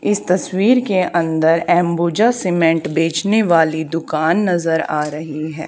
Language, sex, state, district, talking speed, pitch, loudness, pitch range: Hindi, female, Haryana, Charkhi Dadri, 135 wpm, 170 Hz, -16 LUFS, 160-185 Hz